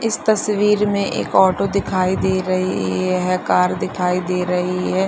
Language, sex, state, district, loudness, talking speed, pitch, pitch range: Hindi, female, Bihar, Madhepura, -18 LUFS, 165 wpm, 185 Hz, 180-200 Hz